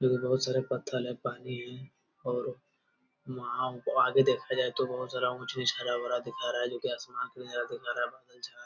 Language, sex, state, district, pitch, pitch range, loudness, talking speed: Hindi, male, Bihar, Jamui, 125 Hz, 120-130 Hz, -32 LUFS, 240 wpm